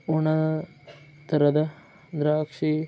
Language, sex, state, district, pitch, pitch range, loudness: Kannada, male, Karnataka, Dharwad, 155 Hz, 150-155 Hz, -25 LUFS